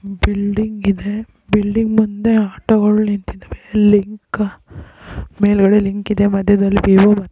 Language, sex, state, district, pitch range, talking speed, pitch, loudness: Kannada, female, Karnataka, Raichur, 200-215 Hz, 100 wpm, 205 Hz, -15 LUFS